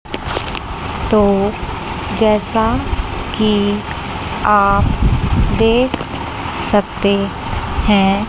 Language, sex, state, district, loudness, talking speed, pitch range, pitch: Hindi, female, Chandigarh, Chandigarh, -16 LUFS, 50 wpm, 200-220 Hz, 210 Hz